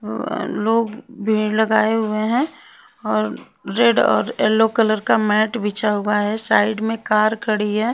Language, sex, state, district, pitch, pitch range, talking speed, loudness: Hindi, female, Himachal Pradesh, Shimla, 215 Hz, 210-225 Hz, 150 wpm, -19 LUFS